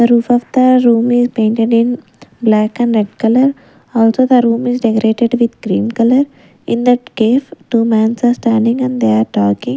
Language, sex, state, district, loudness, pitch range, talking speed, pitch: English, female, Punjab, Kapurthala, -13 LUFS, 220-245 Hz, 190 wpm, 235 Hz